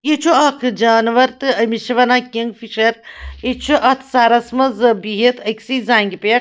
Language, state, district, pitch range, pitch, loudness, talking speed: Kashmiri, Punjab, Kapurthala, 230-260 Hz, 245 Hz, -15 LUFS, 170 wpm